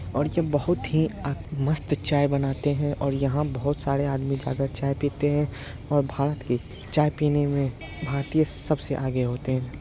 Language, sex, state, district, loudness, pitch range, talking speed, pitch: Hindi, male, Bihar, Supaul, -26 LUFS, 135-145 Hz, 185 wpm, 140 Hz